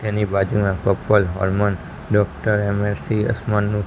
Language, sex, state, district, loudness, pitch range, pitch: Gujarati, male, Gujarat, Gandhinagar, -20 LUFS, 100-105 Hz, 105 Hz